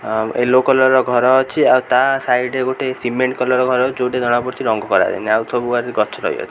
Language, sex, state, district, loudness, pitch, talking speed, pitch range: Odia, male, Odisha, Khordha, -16 LUFS, 125 Hz, 240 wpm, 120-130 Hz